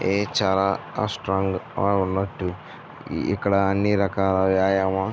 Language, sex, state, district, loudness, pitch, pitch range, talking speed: Telugu, male, Andhra Pradesh, Visakhapatnam, -23 LUFS, 95 Hz, 95-100 Hz, 115 wpm